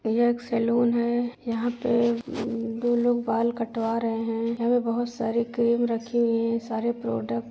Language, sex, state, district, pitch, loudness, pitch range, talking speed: Hindi, female, Uttar Pradesh, Budaun, 235 Hz, -26 LUFS, 230-240 Hz, 185 wpm